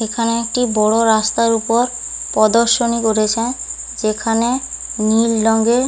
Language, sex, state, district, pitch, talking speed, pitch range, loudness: Bengali, female, West Bengal, Paschim Medinipur, 230 Hz, 100 wpm, 220-235 Hz, -16 LUFS